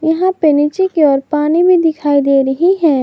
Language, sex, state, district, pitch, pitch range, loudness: Hindi, female, Jharkhand, Garhwa, 310 Hz, 290-345 Hz, -12 LUFS